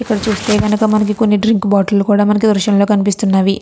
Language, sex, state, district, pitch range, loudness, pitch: Telugu, female, Andhra Pradesh, Krishna, 200-215 Hz, -13 LUFS, 210 Hz